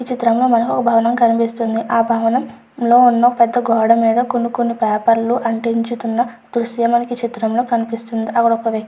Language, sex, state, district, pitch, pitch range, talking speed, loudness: Telugu, female, Andhra Pradesh, Chittoor, 235 Hz, 230-240 Hz, 150 wpm, -16 LUFS